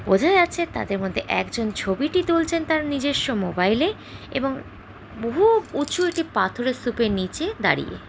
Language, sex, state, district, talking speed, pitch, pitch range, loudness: Bengali, female, West Bengal, Jhargram, 135 wpm, 280 Hz, 220-335 Hz, -22 LUFS